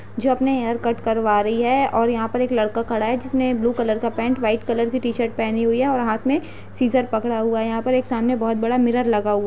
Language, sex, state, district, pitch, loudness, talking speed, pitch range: Hindi, female, Uttar Pradesh, Budaun, 235 Hz, -21 LUFS, 265 wpm, 225-250 Hz